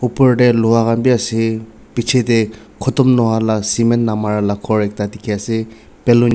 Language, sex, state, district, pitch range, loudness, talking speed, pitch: Nagamese, male, Nagaland, Dimapur, 110-120 Hz, -15 LUFS, 190 wpm, 115 Hz